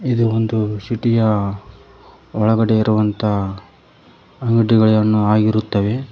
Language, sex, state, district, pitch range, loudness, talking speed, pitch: Kannada, male, Karnataka, Koppal, 105-115 Hz, -17 LUFS, 80 wpm, 110 Hz